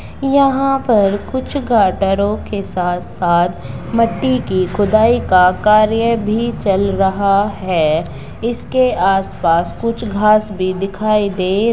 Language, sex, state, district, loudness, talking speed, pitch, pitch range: Hindi, female, Bihar, Begusarai, -15 LUFS, 110 wpm, 200 Hz, 185-230 Hz